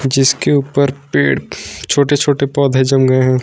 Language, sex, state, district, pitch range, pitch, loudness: Hindi, male, Jharkhand, Garhwa, 125-140 Hz, 135 Hz, -14 LUFS